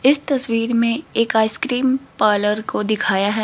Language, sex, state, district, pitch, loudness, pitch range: Hindi, female, Rajasthan, Jaipur, 230 Hz, -18 LUFS, 215-260 Hz